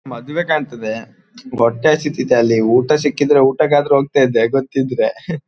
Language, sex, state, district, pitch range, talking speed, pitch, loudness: Kannada, male, Karnataka, Dakshina Kannada, 120-150 Hz, 120 wpm, 140 Hz, -15 LUFS